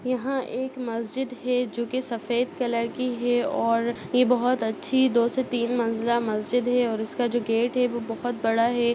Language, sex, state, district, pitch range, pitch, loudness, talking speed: Hindi, female, Chhattisgarh, Kabirdham, 235-250 Hz, 240 Hz, -25 LUFS, 180 wpm